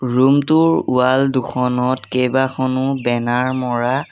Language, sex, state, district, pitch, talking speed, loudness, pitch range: Assamese, male, Assam, Sonitpur, 130 Hz, 100 wpm, -17 LUFS, 125-135 Hz